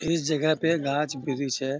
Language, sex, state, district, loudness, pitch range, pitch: Hindi, male, Bihar, Bhagalpur, -26 LUFS, 140-160 Hz, 150 Hz